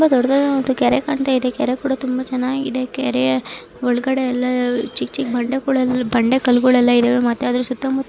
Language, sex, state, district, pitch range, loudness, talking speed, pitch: Kannada, female, Karnataka, Dharwad, 245-265 Hz, -18 LUFS, 165 wpm, 255 Hz